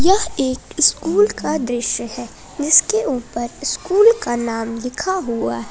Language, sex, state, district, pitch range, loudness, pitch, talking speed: Hindi, female, Jharkhand, Palamu, 235-375 Hz, -18 LUFS, 275 Hz, 145 wpm